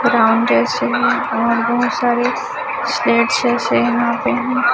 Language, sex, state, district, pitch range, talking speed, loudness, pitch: Hindi, male, Chhattisgarh, Raipur, 230-245 Hz, 115 wpm, -16 LUFS, 240 Hz